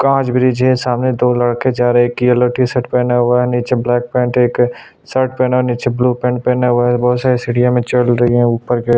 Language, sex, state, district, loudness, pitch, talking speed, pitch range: Hindi, male, Chhattisgarh, Sukma, -14 LUFS, 125 Hz, 255 wpm, 120-125 Hz